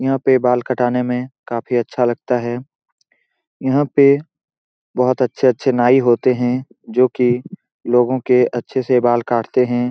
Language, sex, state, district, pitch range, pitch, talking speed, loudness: Hindi, male, Bihar, Saran, 120-130 Hz, 125 Hz, 155 wpm, -17 LUFS